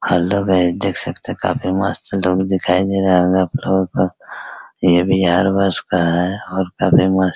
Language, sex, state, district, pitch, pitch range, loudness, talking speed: Hindi, male, Bihar, Araria, 95 Hz, 90-95 Hz, -17 LUFS, 195 wpm